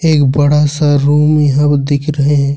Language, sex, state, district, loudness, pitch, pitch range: Hindi, male, Jharkhand, Ranchi, -11 LUFS, 145 Hz, 145-150 Hz